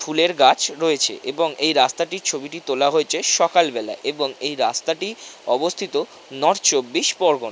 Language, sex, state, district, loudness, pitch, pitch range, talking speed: Bengali, male, West Bengal, North 24 Parganas, -20 LUFS, 170 Hz, 160-195 Hz, 120 wpm